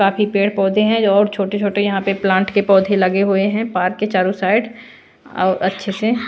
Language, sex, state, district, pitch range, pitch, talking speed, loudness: Hindi, female, Bihar, Patna, 195-210 Hz, 200 Hz, 200 wpm, -16 LUFS